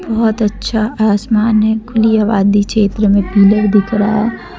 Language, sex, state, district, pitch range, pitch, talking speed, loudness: Hindi, female, Jharkhand, Deoghar, 205-220 Hz, 215 Hz, 155 wpm, -13 LUFS